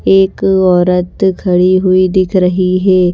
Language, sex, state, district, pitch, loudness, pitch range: Hindi, female, Chhattisgarh, Raipur, 185 Hz, -11 LUFS, 180-190 Hz